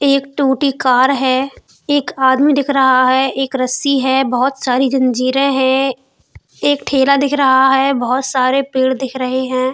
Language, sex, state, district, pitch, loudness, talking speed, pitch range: Hindi, female, Uttar Pradesh, Hamirpur, 265 Hz, -14 LUFS, 165 wpm, 260-275 Hz